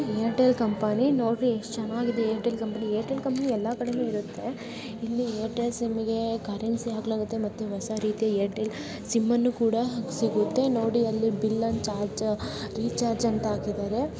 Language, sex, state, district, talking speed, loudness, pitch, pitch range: Kannada, female, Karnataka, Belgaum, 150 wpm, -28 LUFS, 225 Hz, 215-235 Hz